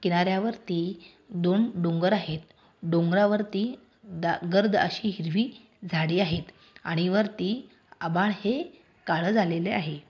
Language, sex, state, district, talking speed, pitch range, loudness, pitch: Marathi, female, Maharashtra, Aurangabad, 100 wpm, 170-215 Hz, -27 LUFS, 190 Hz